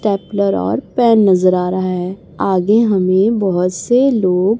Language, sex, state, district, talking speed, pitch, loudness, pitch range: Hindi, female, Chhattisgarh, Raipur, 155 wpm, 190 Hz, -14 LUFS, 185-210 Hz